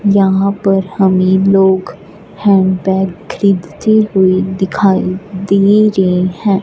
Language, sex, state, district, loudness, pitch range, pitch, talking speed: Hindi, female, Punjab, Fazilka, -12 LUFS, 190-200 Hz, 195 Hz, 110 wpm